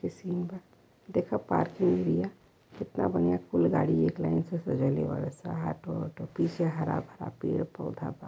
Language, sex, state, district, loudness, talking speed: Bhojpuri, female, Uttar Pradesh, Varanasi, -30 LUFS, 150 wpm